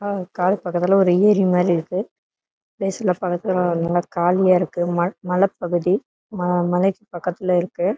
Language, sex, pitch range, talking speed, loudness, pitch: Tamil, female, 175-190 Hz, 130 wpm, -20 LUFS, 180 Hz